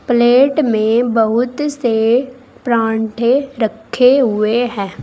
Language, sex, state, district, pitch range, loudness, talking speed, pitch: Hindi, female, Uttar Pradesh, Saharanpur, 220-255 Hz, -14 LUFS, 95 wpm, 240 Hz